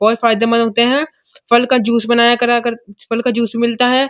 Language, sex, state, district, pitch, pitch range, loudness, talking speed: Hindi, male, Uttar Pradesh, Muzaffarnagar, 235 Hz, 230-250 Hz, -14 LUFS, 220 wpm